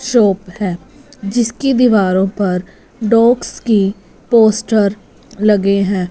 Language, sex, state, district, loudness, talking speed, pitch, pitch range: Hindi, female, Punjab, Fazilka, -14 LUFS, 100 wpm, 210 Hz, 195-235 Hz